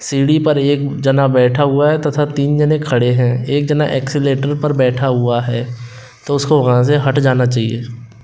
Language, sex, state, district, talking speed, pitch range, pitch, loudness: Hindi, male, Rajasthan, Jaipur, 190 wpm, 125-145 Hz, 135 Hz, -14 LUFS